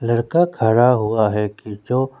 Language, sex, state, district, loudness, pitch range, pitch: Hindi, male, Arunachal Pradesh, Lower Dibang Valley, -18 LUFS, 110-125 Hz, 115 Hz